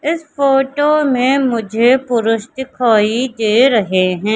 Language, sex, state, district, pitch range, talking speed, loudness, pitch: Hindi, female, Madhya Pradesh, Katni, 225-270 Hz, 125 wpm, -14 LUFS, 250 Hz